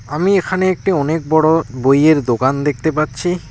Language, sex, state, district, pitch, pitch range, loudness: Bengali, male, West Bengal, Alipurduar, 155 Hz, 140-175 Hz, -15 LUFS